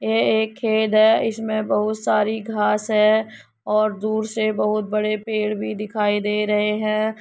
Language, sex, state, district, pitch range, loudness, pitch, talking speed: Hindi, female, Uttar Pradesh, Jyotiba Phule Nagar, 210-220 Hz, -20 LUFS, 215 Hz, 165 wpm